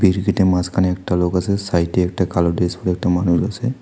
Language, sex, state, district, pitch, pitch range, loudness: Bengali, male, West Bengal, Alipurduar, 90 Hz, 90-100 Hz, -18 LUFS